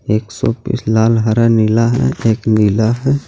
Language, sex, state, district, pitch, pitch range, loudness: Hindi, male, Jharkhand, Garhwa, 110 Hz, 110-115 Hz, -14 LUFS